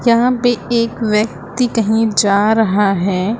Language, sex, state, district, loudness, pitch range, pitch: Hindi, female, Uttar Pradesh, Lucknow, -15 LUFS, 210-235 Hz, 225 Hz